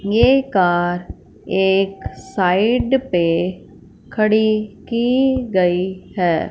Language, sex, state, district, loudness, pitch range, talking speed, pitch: Hindi, female, Punjab, Fazilka, -18 LUFS, 180-235 Hz, 85 wpm, 195 Hz